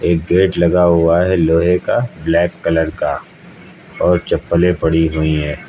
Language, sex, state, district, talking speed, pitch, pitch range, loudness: Hindi, male, Uttar Pradesh, Lucknow, 160 wpm, 85 Hz, 80-90 Hz, -15 LUFS